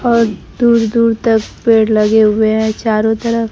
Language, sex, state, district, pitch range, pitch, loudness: Hindi, female, Bihar, Kaimur, 220-230 Hz, 225 Hz, -13 LUFS